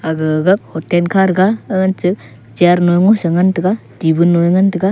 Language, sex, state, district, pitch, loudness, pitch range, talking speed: Wancho, male, Arunachal Pradesh, Longding, 180 Hz, -13 LUFS, 165-190 Hz, 205 wpm